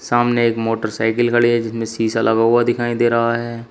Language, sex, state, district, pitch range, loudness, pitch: Hindi, male, Uttar Pradesh, Shamli, 115-120 Hz, -17 LUFS, 115 Hz